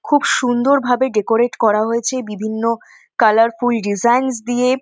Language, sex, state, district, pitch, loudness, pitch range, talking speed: Bengali, female, West Bengal, North 24 Parganas, 235 Hz, -16 LUFS, 220-255 Hz, 125 wpm